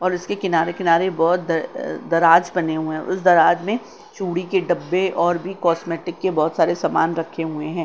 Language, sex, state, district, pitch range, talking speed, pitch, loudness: Hindi, female, Bihar, Katihar, 165-185 Hz, 200 wpm, 175 Hz, -20 LUFS